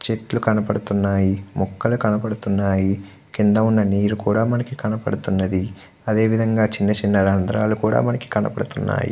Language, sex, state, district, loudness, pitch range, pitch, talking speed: Telugu, male, Andhra Pradesh, Guntur, -20 LUFS, 100-110 Hz, 105 Hz, 125 wpm